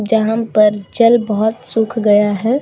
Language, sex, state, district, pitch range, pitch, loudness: Hindi, female, Uttar Pradesh, Hamirpur, 210-230 Hz, 220 Hz, -14 LUFS